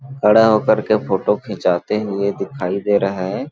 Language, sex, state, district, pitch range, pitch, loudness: Hindi, male, Chhattisgarh, Balrampur, 100-110 Hz, 100 Hz, -17 LUFS